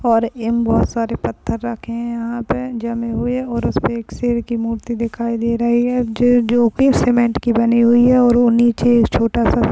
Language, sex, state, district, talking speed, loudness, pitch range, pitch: Hindi, female, Maharashtra, Nagpur, 210 wpm, -17 LUFS, 230-240 Hz, 235 Hz